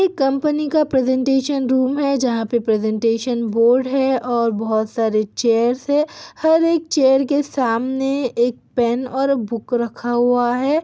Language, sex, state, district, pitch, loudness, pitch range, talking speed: Hindi, female, Chhattisgarh, Korba, 255 Hz, -18 LUFS, 235-275 Hz, 155 wpm